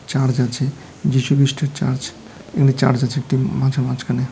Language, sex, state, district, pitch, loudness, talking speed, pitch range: Bengali, male, West Bengal, Dakshin Dinajpur, 135 Hz, -19 LUFS, 155 wpm, 130-140 Hz